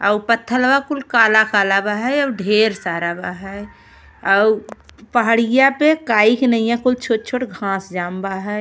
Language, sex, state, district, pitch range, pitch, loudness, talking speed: Bhojpuri, female, Uttar Pradesh, Gorakhpur, 200-250 Hz, 220 Hz, -17 LUFS, 165 wpm